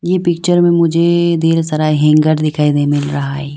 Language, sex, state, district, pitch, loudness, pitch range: Hindi, female, Arunachal Pradesh, Lower Dibang Valley, 155 Hz, -13 LUFS, 150-170 Hz